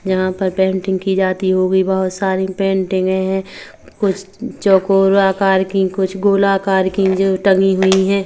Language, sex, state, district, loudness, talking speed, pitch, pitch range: Hindi, female, Chhattisgarh, Kabirdham, -15 LUFS, 160 wpm, 190 Hz, 190-195 Hz